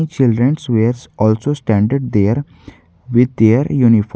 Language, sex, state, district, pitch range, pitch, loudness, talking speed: English, male, Jharkhand, Garhwa, 110-135 Hz, 120 Hz, -15 LUFS, 115 wpm